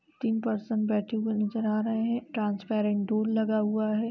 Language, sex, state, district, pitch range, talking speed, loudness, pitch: Hindi, female, Uttar Pradesh, Jalaun, 215-225 Hz, 190 wpm, -28 LUFS, 220 Hz